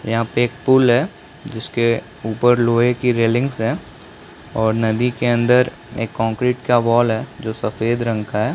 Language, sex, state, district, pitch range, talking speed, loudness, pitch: Hindi, male, Chhattisgarh, Bastar, 115-125 Hz, 160 wpm, -18 LUFS, 120 Hz